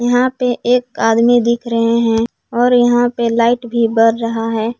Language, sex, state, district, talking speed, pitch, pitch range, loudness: Hindi, female, Jharkhand, Palamu, 190 wpm, 235 Hz, 230-245 Hz, -14 LUFS